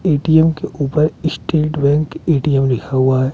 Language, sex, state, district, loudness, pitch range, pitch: Hindi, male, Bihar, West Champaran, -16 LUFS, 135-160 Hz, 150 Hz